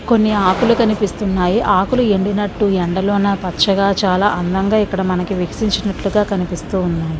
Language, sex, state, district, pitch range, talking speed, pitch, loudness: Telugu, female, Andhra Pradesh, Visakhapatnam, 185-205 Hz, 110 wpm, 195 Hz, -16 LUFS